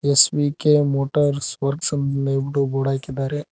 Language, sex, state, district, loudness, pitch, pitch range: Kannada, male, Karnataka, Koppal, -20 LUFS, 140 Hz, 135-145 Hz